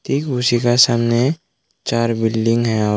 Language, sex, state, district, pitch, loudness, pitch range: Hindi, male, Tripura, West Tripura, 120 Hz, -17 LUFS, 115-125 Hz